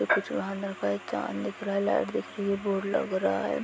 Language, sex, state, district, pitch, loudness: Hindi, female, Jharkhand, Sahebganj, 195 Hz, -29 LUFS